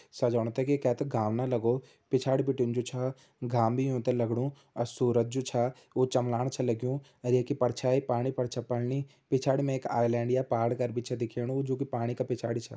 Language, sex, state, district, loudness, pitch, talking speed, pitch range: Hindi, male, Uttarakhand, Uttarkashi, -30 LUFS, 125 Hz, 215 wpm, 120-130 Hz